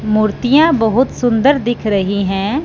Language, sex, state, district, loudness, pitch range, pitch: Hindi, female, Punjab, Fazilka, -14 LUFS, 210-260 Hz, 225 Hz